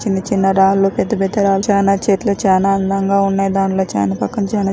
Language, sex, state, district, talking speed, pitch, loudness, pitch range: Telugu, female, Andhra Pradesh, Anantapur, 205 wpm, 195 Hz, -15 LUFS, 195-200 Hz